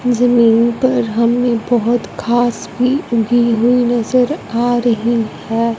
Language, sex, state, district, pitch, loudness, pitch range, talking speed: Hindi, female, Punjab, Fazilka, 240 Hz, -15 LUFS, 230-245 Hz, 125 wpm